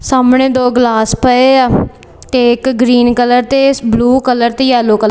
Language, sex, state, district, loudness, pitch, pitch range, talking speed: Punjabi, female, Punjab, Kapurthala, -10 LUFS, 250 Hz, 240-260 Hz, 190 wpm